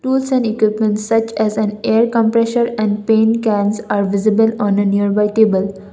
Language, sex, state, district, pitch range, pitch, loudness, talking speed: English, female, Assam, Kamrup Metropolitan, 205-225 Hz, 220 Hz, -15 LUFS, 170 wpm